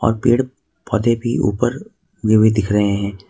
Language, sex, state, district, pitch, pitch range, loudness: Hindi, male, Jharkhand, Ranchi, 110 Hz, 105-120 Hz, -18 LUFS